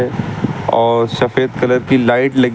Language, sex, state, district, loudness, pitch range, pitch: Hindi, male, Uttar Pradesh, Lucknow, -15 LUFS, 120-130 Hz, 125 Hz